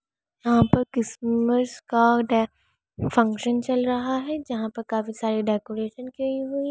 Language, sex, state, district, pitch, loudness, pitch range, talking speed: Hindi, female, Andhra Pradesh, Chittoor, 235 Hz, -24 LUFS, 225-250 Hz, 150 wpm